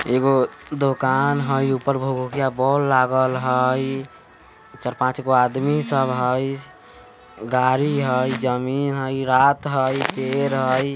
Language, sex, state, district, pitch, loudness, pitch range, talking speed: Hindi, male, Bihar, Vaishali, 130 Hz, -20 LUFS, 130-135 Hz, 120 wpm